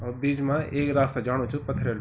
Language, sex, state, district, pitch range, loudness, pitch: Garhwali, male, Uttarakhand, Tehri Garhwal, 125-140 Hz, -26 LUFS, 135 Hz